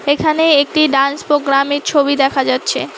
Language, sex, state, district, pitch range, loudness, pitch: Bengali, female, West Bengal, Alipurduar, 275-300 Hz, -14 LUFS, 285 Hz